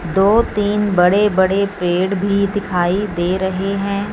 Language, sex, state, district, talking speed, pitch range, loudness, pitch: Hindi, female, Punjab, Fazilka, 145 wpm, 185-205 Hz, -16 LUFS, 195 Hz